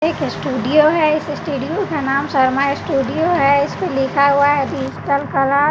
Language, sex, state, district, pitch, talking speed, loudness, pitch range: Hindi, female, Bihar, West Champaran, 280 Hz, 180 wpm, -17 LUFS, 275-305 Hz